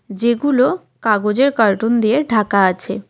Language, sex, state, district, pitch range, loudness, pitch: Bengali, female, West Bengal, Cooch Behar, 205-250 Hz, -16 LUFS, 225 Hz